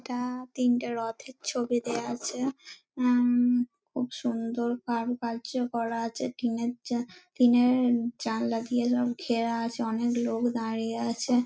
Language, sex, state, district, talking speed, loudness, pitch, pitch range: Bengali, female, West Bengal, Dakshin Dinajpur, 120 wpm, -29 LUFS, 240 Hz, 230-245 Hz